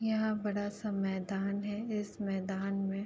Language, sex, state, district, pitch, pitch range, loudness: Hindi, female, Uttar Pradesh, Etah, 200 Hz, 195-210 Hz, -35 LUFS